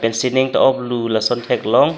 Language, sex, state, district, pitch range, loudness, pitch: Karbi, male, Assam, Karbi Anglong, 115-130 Hz, -17 LUFS, 125 Hz